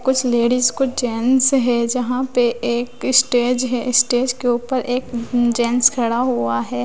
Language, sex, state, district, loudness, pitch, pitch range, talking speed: Hindi, female, Bihar, West Champaran, -18 LUFS, 245 Hz, 240-255 Hz, 160 wpm